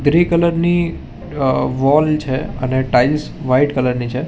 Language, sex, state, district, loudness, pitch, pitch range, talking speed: Gujarati, male, Gujarat, Gandhinagar, -16 LUFS, 145 Hz, 130-160 Hz, 170 wpm